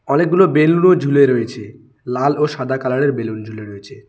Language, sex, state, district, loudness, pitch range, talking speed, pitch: Bengali, male, West Bengal, Alipurduar, -15 LUFS, 115-150 Hz, 190 wpm, 135 Hz